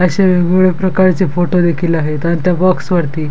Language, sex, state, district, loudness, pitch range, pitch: Marathi, male, Maharashtra, Dhule, -13 LUFS, 170-185 Hz, 175 Hz